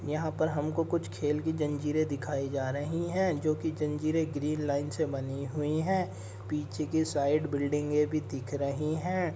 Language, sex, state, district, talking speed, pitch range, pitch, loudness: Hindi, male, Uttar Pradesh, Muzaffarnagar, 180 wpm, 140-155 Hz, 150 Hz, -31 LUFS